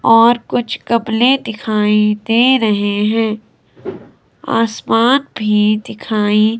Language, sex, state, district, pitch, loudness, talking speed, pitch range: Hindi, female, Himachal Pradesh, Shimla, 225 Hz, -14 LUFS, 100 wpm, 210-235 Hz